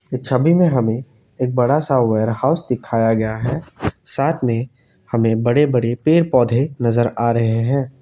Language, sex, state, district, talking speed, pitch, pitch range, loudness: Hindi, male, Assam, Kamrup Metropolitan, 165 wpm, 125 Hz, 115-135 Hz, -18 LUFS